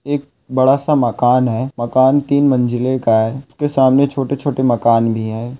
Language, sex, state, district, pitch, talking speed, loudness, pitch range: Hindi, male, Goa, North and South Goa, 130 Hz, 180 wpm, -15 LUFS, 120-140 Hz